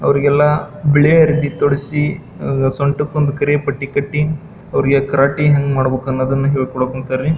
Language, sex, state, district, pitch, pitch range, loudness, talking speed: Kannada, male, Karnataka, Belgaum, 145 Hz, 135-150 Hz, -16 LUFS, 120 wpm